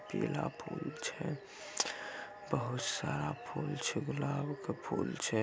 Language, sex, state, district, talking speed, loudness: Maithili, male, Bihar, Samastipur, 120 wpm, -38 LUFS